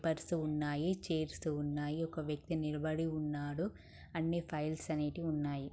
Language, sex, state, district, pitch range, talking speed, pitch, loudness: Telugu, female, Andhra Pradesh, Guntur, 150-165 Hz, 125 wpm, 155 Hz, -38 LUFS